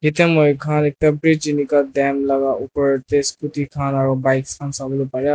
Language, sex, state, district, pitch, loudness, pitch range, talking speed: Nagamese, male, Nagaland, Dimapur, 140 Hz, -18 LUFS, 135-150 Hz, 200 wpm